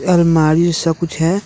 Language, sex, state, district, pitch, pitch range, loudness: Hindi, male, Jharkhand, Deoghar, 170 Hz, 160-175 Hz, -14 LUFS